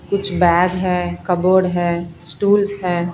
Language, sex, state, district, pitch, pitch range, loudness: Hindi, female, Bihar, Patna, 180 Hz, 175-185 Hz, -17 LUFS